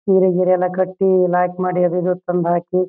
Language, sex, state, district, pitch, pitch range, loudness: Kannada, male, Karnataka, Shimoga, 180 Hz, 180-185 Hz, -17 LUFS